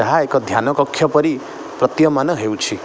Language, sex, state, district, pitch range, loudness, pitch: Odia, male, Odisha, Khordha, 135-155 Hz, -17 LUFS, 145 Hz